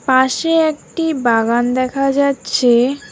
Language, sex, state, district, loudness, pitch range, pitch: Bengali, female, West Bengal, Alipurduar, -15 LUFS, 245-285 Hz, 260 Hz